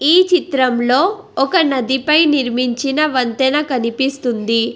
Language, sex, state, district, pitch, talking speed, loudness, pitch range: Telugu, female, Telangana, Hyderabad, 270 Hz, 90 wpm, -15 LUFS, 250-305 Hz